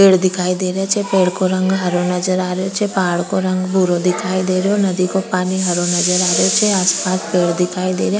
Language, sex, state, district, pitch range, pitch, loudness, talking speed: Rajasthani, female, Rajasthan, Churu, 180-190 Hz, 185 Hz, -16 LUFS, 250 wpm